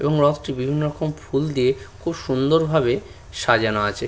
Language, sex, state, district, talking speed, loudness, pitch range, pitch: Bengali, male, West Bengal, Purulia, 160 wpm, -21 LUFS, 125-150 Hz, 140 Hz